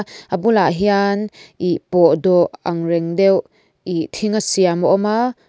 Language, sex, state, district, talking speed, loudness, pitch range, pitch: Mizo, female, Mizoram, Aizawl, 175 wpm, -17 LUFS, 175-210 Hz, 190 Hz